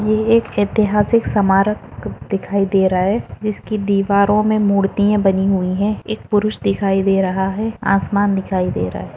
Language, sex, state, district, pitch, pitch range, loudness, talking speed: Hindi, female, Maharashtra, Dhule, 200 Hz, 195-210 Hz, -16 LUFS, 175 wpm